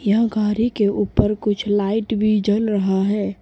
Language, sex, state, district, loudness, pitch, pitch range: Hindi, female, Arunachal Pradesh, Papum Pare, -19 LUFS, 210 Hz, 205-215 Hz